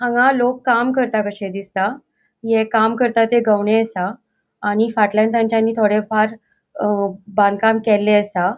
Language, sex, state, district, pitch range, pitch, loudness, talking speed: Konkani, female, Goa, North and South Goa, 205-230 Hz, 220 Hz, -17 LUFS, 145 wpm